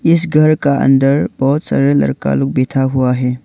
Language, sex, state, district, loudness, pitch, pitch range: Hindi, male, Arunachal Pradesh, Longding, -13 LUFS, 135 Hz, 125-145 Hz